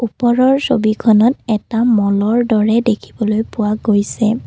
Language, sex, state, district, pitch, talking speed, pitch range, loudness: Assamese, female, Assam, Kamrup Metropolitan, 225 Hz, 105 wpm, 215-240 Hz, -15 LUFS